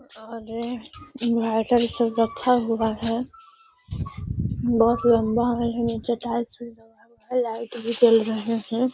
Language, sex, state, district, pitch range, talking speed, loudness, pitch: Magahi, female, Bihar, Gaya, 225-240 Hz, 155 wpm, -23 LUFS, 235 Hz